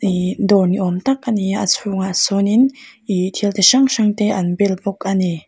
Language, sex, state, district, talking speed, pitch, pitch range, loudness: Mizo, female, Mizoram, Aizawl, 230 wpm, 200 Hz, 190-215 Hz, -16 LUFS